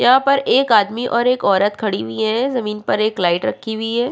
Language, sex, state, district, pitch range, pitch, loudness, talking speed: Hindi, female, Uttarakhand, Tehri Garhwal, 205-250 Hz, 220 Hz, -17 LUFS, 250 wpm